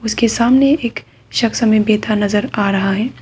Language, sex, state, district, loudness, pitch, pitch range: Hindi, female, Arunachal Pradesh, Papum Pare, -15 LUFS, 220 Hz, 210-235 Hz